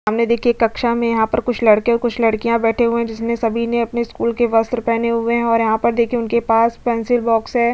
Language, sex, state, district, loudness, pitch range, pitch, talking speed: Hindi, female, Chhattisgarh, Bastar, -17 LUFS, 225-235 Hz, 235 Hz, 255 wpm